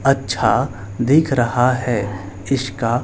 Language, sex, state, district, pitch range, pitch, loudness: Hindi, male, Bihar, Kaimur, 105-130 Hz, 120 Hz, -18 LUFS